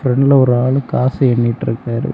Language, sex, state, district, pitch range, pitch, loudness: Tamil, male, Tamil Nadu, Kanyakumari, 120-135 Hz, 130 Hz, -14 LUFS